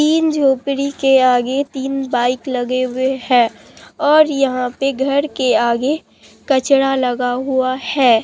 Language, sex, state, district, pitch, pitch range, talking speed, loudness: Hindi, male, Bihar, Katihar, 265 Hz, 250-275 Hz, 140 wpm, -16 LUFS